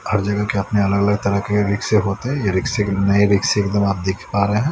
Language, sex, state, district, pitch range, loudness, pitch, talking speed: Hindi, male, Haryana, Rohtak, 100-105 Hz, -18 LUFS, 100 Hz, 265 wpm